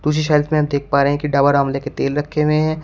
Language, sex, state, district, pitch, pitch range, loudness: Hindi, male, Uttar Pradesh, Shamli, 145 Hz, 140-150 Hz, -17 LUFS